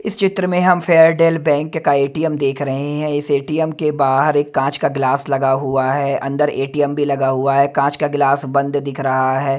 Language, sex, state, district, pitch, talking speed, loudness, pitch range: Hindi, male, Himachal Pradesh, Shimla, 145 Hz, 220 wpm, -16 LUFS, 135-155 Hz